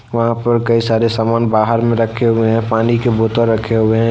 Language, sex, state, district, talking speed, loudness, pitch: Hindi, male, Jharkhand, Deoghar, 220 wpm, -14 LUFS, 115 Hz